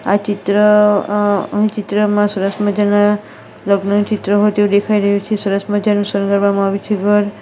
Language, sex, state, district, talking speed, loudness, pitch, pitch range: Gujarati, female, Gujarat, Valsad, 160 wpm, -15 LUFS, 205 Hz, 200-210 Hz